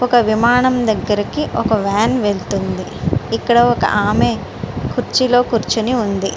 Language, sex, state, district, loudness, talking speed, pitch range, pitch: Telugu, female, Andhra Pradesh, Srikakulam, -16 LUFS, 115 wpm, 210-245 Hz, 230 Hz